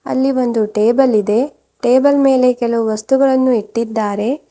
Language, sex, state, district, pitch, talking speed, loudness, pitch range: Kannada, female, Karnataka, Bidar, 240 Hz, 120 wpm, -15 LUFS, 220-265 Hz